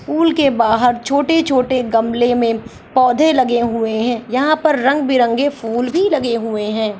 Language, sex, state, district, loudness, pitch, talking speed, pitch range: Hindi, female, Bihar, Saharsa, -15 LUFS, 245 Hz, 155 wpm, 230-285 Hz